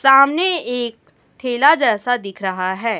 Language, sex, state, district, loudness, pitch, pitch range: Hindi, female, Chhattisgarh, Raipur, -17 LUFS, 245 Hz, 205-275 Hz